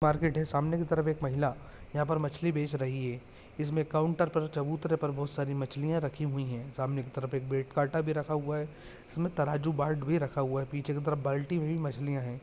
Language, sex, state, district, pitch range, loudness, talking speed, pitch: Hindi, male, Maharashtra, Pune, 135-155 Hz, -32 LUFS, 230 wpm, 145 Hz